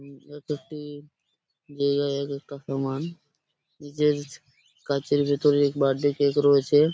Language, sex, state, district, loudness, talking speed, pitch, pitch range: Bengali, male, West Bengal, Purulia, -24 LUFS, 130 wpm, 145 Hz, 140-150 Hz